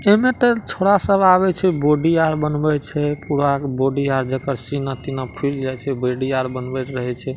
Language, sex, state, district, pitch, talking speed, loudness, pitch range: Maithili, male, Bihar, Madhepura, 140 Hz, 155 wpm, -19 LUFS, 130-160 Hz